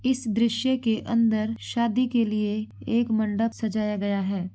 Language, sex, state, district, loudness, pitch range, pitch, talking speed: Hindi, female, Uttar Pradesh, Ghazipur, -25 LUFS, 215-235 Hz, 220 Hz, 170 wpm